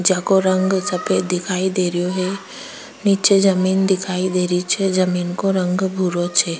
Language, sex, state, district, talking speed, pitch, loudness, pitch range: Rajasthani, female, Rajasthan, Churu, 145 wpm, 185 Hz, -18 LUFS, 180-195 Hz